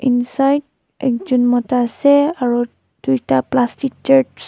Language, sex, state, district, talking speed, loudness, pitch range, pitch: Nagamese, female, Nagaland, Dimapur, 120 wpm, -17 LUFS, 240-275 Hz, 250 Hz